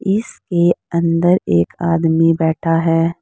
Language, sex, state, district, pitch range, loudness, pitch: Hindi, female, Uttar Pradesh, Saharanpur, 165-175 Hz, -16 LUFS, 165 Hz